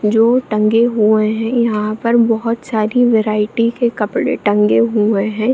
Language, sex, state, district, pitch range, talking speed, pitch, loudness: Hindi, female, Bihar, Jamui, 215-235 Hz, 150 wpm, 220 Hz, -15 LUFS